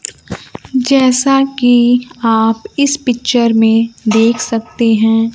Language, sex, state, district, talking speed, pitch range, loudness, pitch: Hindi, female, Bihar, Kaimur, 100 wpm, 225-255 Hz, -12 LUFS, 240 Hz